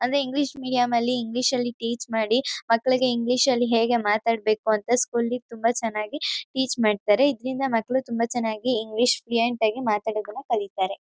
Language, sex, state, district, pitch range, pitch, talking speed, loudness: Kannada, female, Karnataka, Chamarajanagar, 225-255 Hz, 240 Hz, 150 wpm, -24 LUFS